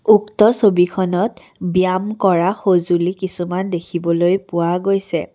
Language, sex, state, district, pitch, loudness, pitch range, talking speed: Assamese, female, Assam, Kamrup Metropolitan, 185 Hz, -17 LUFS, 175-195 Hz, 100 wpm